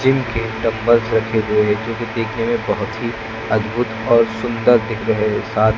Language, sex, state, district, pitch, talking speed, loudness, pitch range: Hindi, male, Maharashtra, Gondia, 110 Hz, 185 wpm, -18 LUFS, 110-115 Hz